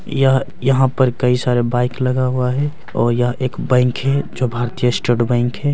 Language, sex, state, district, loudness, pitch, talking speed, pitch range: Hindi, male, Bihar, Bhagalpur, -17 LUFS, 125 Hz, 190 wpm, 120-135 Hz